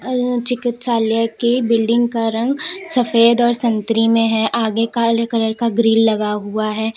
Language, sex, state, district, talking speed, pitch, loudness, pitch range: Hindi, female, Uttar Pradesh, Lalitpur, 165 wpm, 230 Hz, -16 LUFS, 225-240 Hz